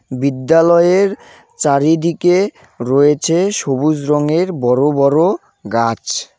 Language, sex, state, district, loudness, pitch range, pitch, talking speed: Bengali, male, West Bengal, Cooch Behar, -14 LUFS, 140-170 Hz, 150 Hz, 75 wpm